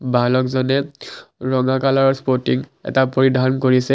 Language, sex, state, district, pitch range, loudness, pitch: Assamese, male, Assam, Kamrup Metropolitan, 130-135 Hz, -18 LUFS, 130 Hz